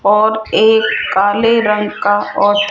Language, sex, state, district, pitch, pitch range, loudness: Hindi, female, Rajasthan, Jaipur, 210 Hz, 205-220 Hz, -13 LUFS